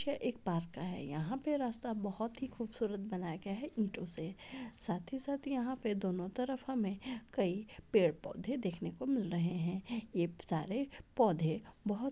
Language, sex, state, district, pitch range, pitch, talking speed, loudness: Hindi, female, Chhattisgarh, Raigarh, 180-255 Hz, 220 Hz, 170 wpm, -38 LUFS